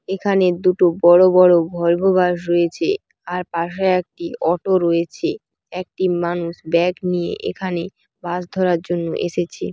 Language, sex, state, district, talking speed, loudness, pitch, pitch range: Bengali, female, West Bengal, Dakshin Dinajpur, 130 wpm, -18 LUFS, 175 Hz, 170-185 Hz